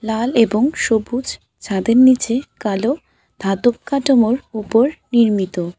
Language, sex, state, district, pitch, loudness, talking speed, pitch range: Bengali, female, West Bengal, Alipurduar, 230 Hz, -17 LUFS, 105 wpm, 210-255 Hz